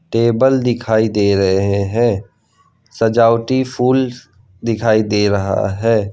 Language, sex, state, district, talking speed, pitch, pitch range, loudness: Hindi, male, Gujarat, Valsad, 105 wpm, 115 Hz, 100-120 Hz, -15 LUFS